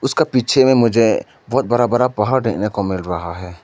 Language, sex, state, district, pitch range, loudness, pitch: Hindi, male, Arunachal Pradesh, Lower Dibang Valley, 95-130 Hz, -16 LUFS, 115 Hz